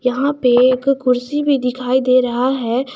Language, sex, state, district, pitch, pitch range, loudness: Hindi, female, Jharkhand, Garhwa, 255 Hz, 250-270 Hz, -16 LUFS